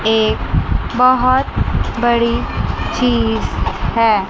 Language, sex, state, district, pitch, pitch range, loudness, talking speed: Hindi, female, Chandigarh, Chandigarh, 235 Hz, 220-250 Hz, -16 LUFS, 70 wpm